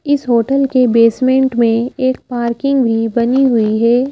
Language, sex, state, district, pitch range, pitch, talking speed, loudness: Hindi, female, Madhya Pradesh, Bhopal, 230-265 Hz, 245 Hz, 175 wpm, -13 LUFS